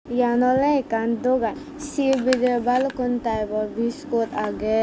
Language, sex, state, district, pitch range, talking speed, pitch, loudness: Chakma, female, Tripura, West Tripura, 225-265 Hz, 135 wpm, 245 Hz, -22 LUFS